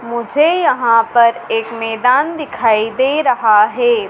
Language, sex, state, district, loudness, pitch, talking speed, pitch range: Hindi, female, Madhya Pradesh, Dhar, -14 LUFS, 235 Hz, 130 wpm, 225-255 Hz